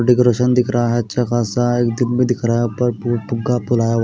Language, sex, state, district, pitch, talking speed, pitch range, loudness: Hindi, male, Odisha, Malkangiri, 120 Hz, 225 wpm, 120-125 Hz, -17 LUFS